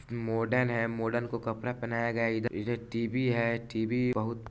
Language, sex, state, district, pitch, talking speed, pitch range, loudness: Hindi, male, Bihar, Vaishali, 115 Hz, 200 wpm, 115-120 Hz, -31 LUFS